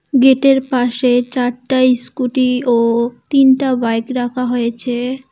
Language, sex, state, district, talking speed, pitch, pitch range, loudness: Bengali, female, West Bengal, Cooch Behar, 100 wpm, 250 Hz, 245-260 Hz, -15 LUFS